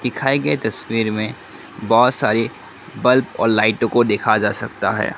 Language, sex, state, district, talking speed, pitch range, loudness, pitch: Hindi, male, Assam, Kamrup Metropolitan, 160 wpm, 110-125 Hz, -18 LUFS, 115 Hz